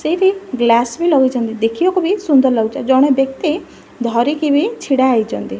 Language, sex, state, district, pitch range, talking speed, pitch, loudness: Odia, female, Odisha, Malkangiri, 235-330 Hz, 160 wpm, 270 Hz, -15 LUFS